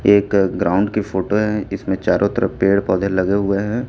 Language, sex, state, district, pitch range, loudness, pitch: Hindi, male, Chhattisgarh, Raipur, 95-105 Hz, -18 LUFS, 100 Hz